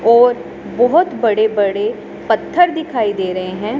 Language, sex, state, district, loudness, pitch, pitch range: Hindi, male, Punjab, Pathankot, -15 LUFS, 225 Hz, 205-245 Hz